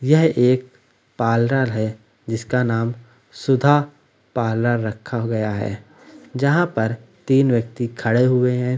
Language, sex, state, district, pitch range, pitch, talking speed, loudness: Hindi, male, Bihar, Gopalganj, 115-130 Hz, 120 Hz, 125 wpm, -20 LUFS